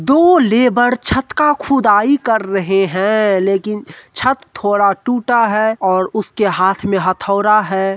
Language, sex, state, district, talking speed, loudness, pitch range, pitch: Hindi, male, Bihar, Supaul, 145 wpm, -14 LUFS, 195-245 Hz, 210 Hz